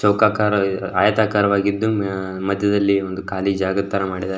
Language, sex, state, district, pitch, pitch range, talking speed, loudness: Kannada, male, Karnataka, Shimoga, 100 Hz, 95-105 Hz, 110 wpm, -19 LUFS